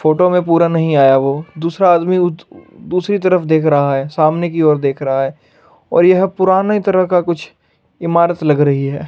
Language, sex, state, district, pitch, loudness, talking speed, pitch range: Hindi, male, Chandigarh, Chandigarh, 170 Hz, -14 LUFS, 200 wpm, 150-180 Hz